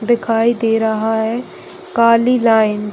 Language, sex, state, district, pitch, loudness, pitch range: Hindi, female, Chhattisgarh, Bilaspur, 225 Hz, -15 LUFS, 220-240 Hz